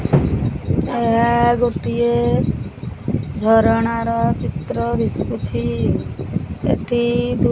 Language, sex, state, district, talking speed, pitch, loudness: Odia, male, Odisha, Khordha, 65 wpm, 195 Hz, -19 LUFS